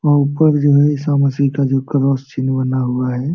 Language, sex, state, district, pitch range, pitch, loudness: Hindi, male, Bihar, Jamui, 130-145 Hz, 140 Hz, -16 LUFS